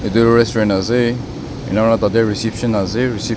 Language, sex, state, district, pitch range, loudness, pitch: Nagamese, male, Nagaland, Dimapur, 105-120 Hz, -16 LUFS, 115 Hz